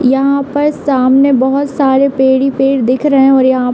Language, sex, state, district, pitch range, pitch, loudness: Hindi, female, Uttar Pradesh, Hamirpur, 265-280 Hz, 270 Hz, -11 LUFS